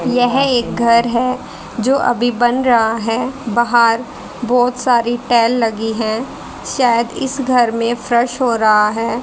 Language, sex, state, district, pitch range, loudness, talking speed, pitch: Hindi, female, Haryana, Charkhi Dadri, 230-250 Hz, -15 LUFS, 150 wpm, 240 Hz